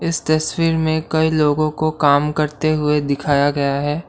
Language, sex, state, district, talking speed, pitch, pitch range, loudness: Hindi, male, Assam, Kamrup Metropolitan, 175 wpm, 155 Hz, 145-160 Hz, -18 LUFS